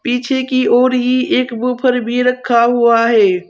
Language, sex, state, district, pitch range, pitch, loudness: Hindi, female, Uttar Pradesh, Saharanpur, 235-255 Hz, 245 Hz, -13 LUFS